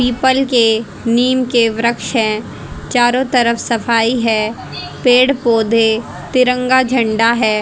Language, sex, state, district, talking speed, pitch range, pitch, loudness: Hindi, female, Haryana, Charkhi Dadri, 120 wpm, 225-250 Hz, 235 Hz, -14 LUFS